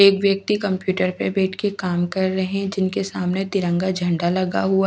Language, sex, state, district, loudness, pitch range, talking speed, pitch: Hindi, female, Haryana, Charkhi Dadri, -21 LUFS, 185-195 Hz, 170 wpm, 190 Hz